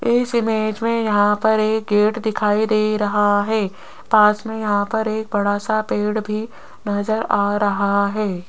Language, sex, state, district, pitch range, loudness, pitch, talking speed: Hindi, female, Rajasthan, Jaipur, 205-220 Hz, -19 LUFS, 215 Hz, 170 wpm